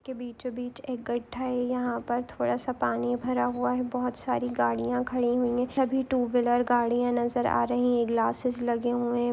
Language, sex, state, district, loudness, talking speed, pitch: Hindi, female, Maharashtra, Aurangabad, -28 LUFS, 200 wpm, 240 Hz